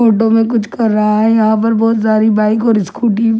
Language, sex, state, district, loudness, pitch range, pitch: Hindi, female, Delhi, New Delhi, -12 LUFS, 215-225 Hz, 220 Hz